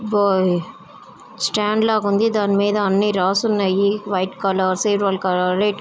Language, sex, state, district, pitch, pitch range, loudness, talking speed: Telugu, female, Andhra Pradesh, Guntur, 200 Hz, 190-210 Hz, -19 LUFS, 155 wpm